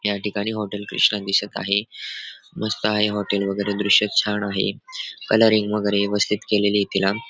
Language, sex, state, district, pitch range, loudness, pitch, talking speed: Marathi, male, Maharashtra, Dhule, 100-105 Hz, -21 LUFS, 105 Hz, 150 wpm